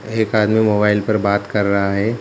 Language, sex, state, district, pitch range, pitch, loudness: Hindi, male, Bihar, Jahanabad, 100-110 Hz, 105 Hz, -17 LUFS